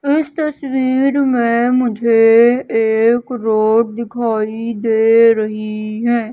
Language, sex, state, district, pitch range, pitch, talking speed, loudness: Hindi, female, Madhya Pradesh, Umaria, 225-250 Hz, 230 Hz, 95 wpm, -14 LUFS